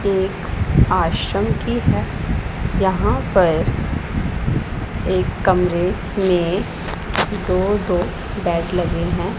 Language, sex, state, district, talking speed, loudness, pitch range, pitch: Hindi, female, Punjab, Pathankot, 90 wpm, -20 LUFS, 175-190 Hz, 185 Hz